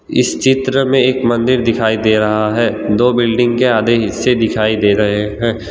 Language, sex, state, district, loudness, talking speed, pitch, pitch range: Hindi, male, Gujarat, Valsad, -13 LUFS, 190 wpm, 115 Hz, 110-125 Hz